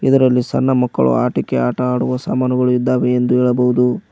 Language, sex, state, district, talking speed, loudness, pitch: Kannada, male, Karnataka, Koppal, 130 wpm, -16 LUFS, 125 Hz